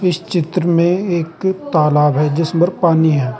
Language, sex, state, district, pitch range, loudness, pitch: Hindi, male, Uttar Pradesh, Saharanpur, 155-180 Hz, -15 LUFS, 170 Hz